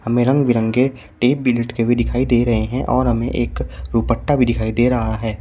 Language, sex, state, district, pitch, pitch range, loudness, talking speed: Hindi, male, Uttar Pradesh, Shamli, 120 Hz, 115-125 Hz, -18 LUFS, 220 wpm